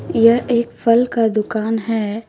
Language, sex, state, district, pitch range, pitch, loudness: Hindi, female, Jharkhand, Deoghar, 220-235 Hz, 225 Hz, -17 LUFS